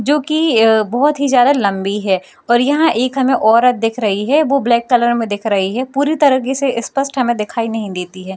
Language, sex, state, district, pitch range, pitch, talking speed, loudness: Hindi, female, Bihar, Jamui, 220-275 Hz, 240 Hz, 230 wpm, -15 LUFS